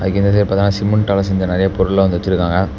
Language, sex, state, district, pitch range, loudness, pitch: Tamil, male, Tamil Nadu, Namakkal, 95-100 Hz, -15 LUFS, 95 Hz